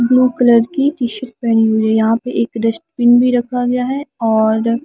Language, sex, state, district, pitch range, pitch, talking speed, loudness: Hindi, female, Himachal Pradesh, Shimla, 225-250 Hz, 240 Hz, 210 wpm, -15 LUFS